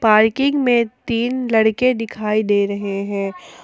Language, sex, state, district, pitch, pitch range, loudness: Hindi, female, Jharkhand, Ranchi, 220 Hz, 205-245 Hz, -18 LUFS